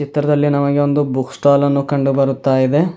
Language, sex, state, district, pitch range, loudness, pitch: Kannada, male, Karnataka, Bidar, 135-145 Hz, -15 LUFS, 140 Hz